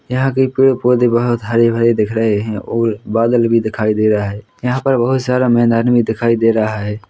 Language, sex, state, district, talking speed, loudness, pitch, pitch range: Hindi, male, Chhattisgarh, Korba, 210 wpm, -15 LUFS, 115 Hz, 110-125 Hz